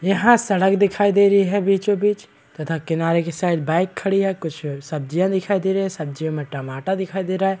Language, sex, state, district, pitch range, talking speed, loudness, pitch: Hindi, male, Bihar, East Champaran, 160-195 Hz, 230 wpm, -20 LUFS, 190 Hz